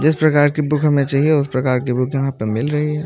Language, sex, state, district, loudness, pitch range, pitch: Hindi, male, Maharashtra, Mumbai Suburban, -17 LUFS, 130-150 Hz, 145 Hz